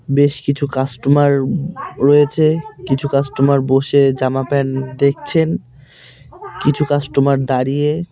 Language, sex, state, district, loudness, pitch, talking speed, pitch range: Bengali, male, West Bengal, Cooch Behar, -16 LUFS, 140 Hz, 95 wpm, 135-145 Hz